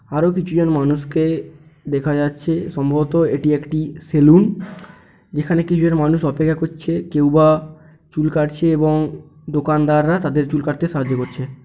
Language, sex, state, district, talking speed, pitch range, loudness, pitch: Bengali, male, West Bengal, Paschim Medinipur, 140 wpm, 150-165 Hz, -18 LUFS, 155 Hz